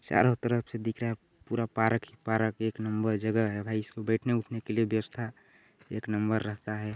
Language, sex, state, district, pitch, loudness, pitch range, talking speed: Hindi, male, Chhattisgarh, Balrampur, 110 Hz, -31 LUFS, 110-115 Hz, 200 wpm